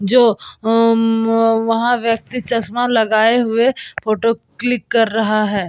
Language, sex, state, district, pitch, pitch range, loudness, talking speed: Hindi, female, Bihar, Vaishali, 225 Hz, 220-240 Hz, -16 LUFS, 125 wpm